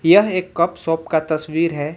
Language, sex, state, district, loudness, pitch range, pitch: Hindi, male, Jharkhand, Ranchi, -19 LUFS, 155-170 Hz, 165 Hz